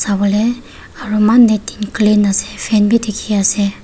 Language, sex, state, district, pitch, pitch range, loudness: Nagamese, female, Nagaland, Dimapur, 210 Hz, 205-220 Hz, -14 LUFS